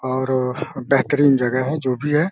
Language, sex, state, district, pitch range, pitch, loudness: Hindi, male, Uttar Pradesh, Deoria, 130-145 Hz, 130 Hz, -19 LUFS